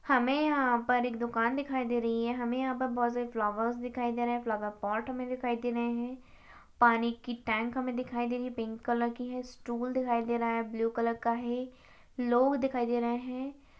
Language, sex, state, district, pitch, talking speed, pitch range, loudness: Hindi, female, Maharashtra, Aurangabad, 240 Hz, 215 wpm, 235-250 Hz, -32 LUFS